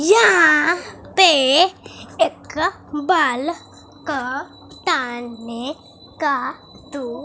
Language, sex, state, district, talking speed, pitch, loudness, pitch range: Hindi, male, Bihar, Katihar, 65 wpm, 305 Hz, -18 LUFS, 260-350 Hz